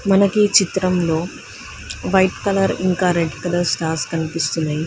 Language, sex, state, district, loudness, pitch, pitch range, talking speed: Telugu, female, Telangana, Hyderabad, -18 LUFS, 175 Hz, 160-190 Hz, 135 wpm